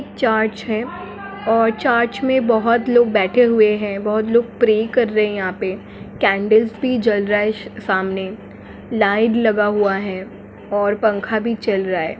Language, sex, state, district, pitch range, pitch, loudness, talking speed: Hindi, female, Jharkhand, Jamtara, 205-230 Hz, 220 Hz, -18 LUFS, 160 wpm